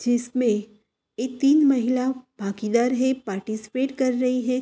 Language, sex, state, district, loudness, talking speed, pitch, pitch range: Hindi, female, Uttar Pradesh, Hamirpur, -23 LUFS, 130 wpm, 250 Hz, 220-255 Hz